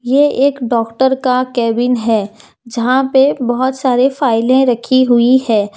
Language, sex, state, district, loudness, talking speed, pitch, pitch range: Hindi, female, Jharkhand, Deoghar, -13 LUFS, 145 wpm, 250 Hz, 235-265 Hz